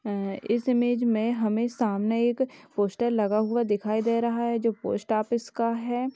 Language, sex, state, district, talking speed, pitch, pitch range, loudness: Hindi, female, Uttar Pradesh, Hamirpur, 185 wpm, 230 Hz, 215-240 Hz, -26 LUFS